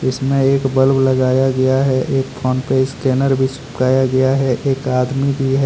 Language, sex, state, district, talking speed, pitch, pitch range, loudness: Hindi, male, Jharkhand, Deoghar, 190 wpm, 130 Hz, 130-135 Hz, -16 LUFS